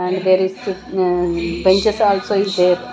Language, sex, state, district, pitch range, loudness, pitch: English, female, Punjab, Kapurthala, 180-200 Hz, -17 LUFS, 190 Hz